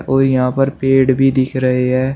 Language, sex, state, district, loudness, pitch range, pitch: Hindi, male, Uttar Pradesh, Shamli, -14 LUFS, 130-135 Hz, 130 Hz